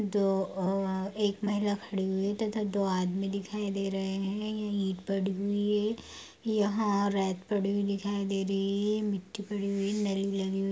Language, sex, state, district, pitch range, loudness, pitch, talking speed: Hindi, female, Bihar, Bhagalpur, 195-205 Hz, -31 LUFS, 200 Hz, 150 wpm